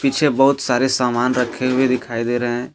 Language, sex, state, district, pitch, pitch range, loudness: Hindi, male, Jharkhand, Deoghar, 125 Hz, 120-135 Hz, -18 LUFS